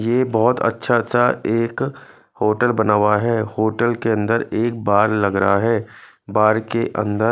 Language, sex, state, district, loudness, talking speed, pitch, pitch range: Hindi, male, Punjab, Fazilka, -18 LUFS, 165 wpm, 110 Hz, 105-115 Hz